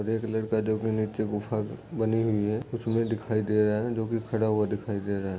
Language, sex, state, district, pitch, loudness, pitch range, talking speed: Hindi, male, Chhattisgarh, Raigarh, 110 Hz, -28 LUFS, 105-115 Hz, 245 wpm